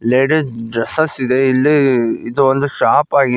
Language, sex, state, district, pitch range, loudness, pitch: Kannada, male, Karnataka, Koppal, 125-140 Hz, -15 LUFS, 135 Hz